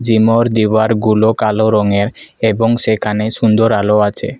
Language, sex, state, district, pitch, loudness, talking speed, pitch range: Bengali, male, Assam, Kamrup Metropolitan, 110 Hz, -13 LUFS, 150 wpm, 105-115 Hz